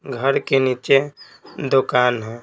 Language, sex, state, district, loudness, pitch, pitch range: Hindi, male, Bihar, Patna, -18 LUFS, 135 Hz, 125-135 Hz